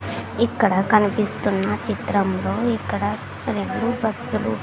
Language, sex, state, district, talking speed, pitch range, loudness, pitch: Telugu, female, Andhra Pradesh, Sri Satya Sai, 90 wpm, 195-230 Hz, -22 LUFS, 205 Hz